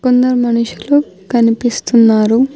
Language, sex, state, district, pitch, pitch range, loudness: Telugu, female, Telangana, Hyderabad, 240 Hz, 230-250 Hz, -13 LUFS